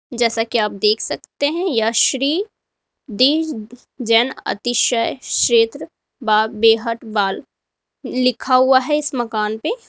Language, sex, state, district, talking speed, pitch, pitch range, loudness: Hindi, female, Uttar Pradesh, Lalitpur, 130 wpm, 240 Hz, 220-275 Hz, -18 LUFS